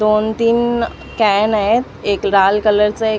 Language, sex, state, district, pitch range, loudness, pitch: Marathi, female, Maharashtra, Mumbai Suburban, 205-225 Hz, -15 LUFS, 215 Hz